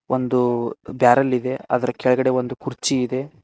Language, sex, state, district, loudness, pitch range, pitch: Kannada, male, Karnataka, Koppal, -20 LUFS, 125-130 Hz, 125 Hz